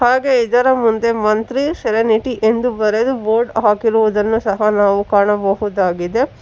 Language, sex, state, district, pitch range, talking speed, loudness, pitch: Kannada, female, Karnataka, Bangalore, 210-240 Hz, 110 wpm, -15 LUFS, 220 Hz